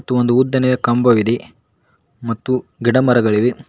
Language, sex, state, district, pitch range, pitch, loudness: Kannada, male, Karnataka, Koppal, 115-125 Hz, 120 Hz, -16 LUFS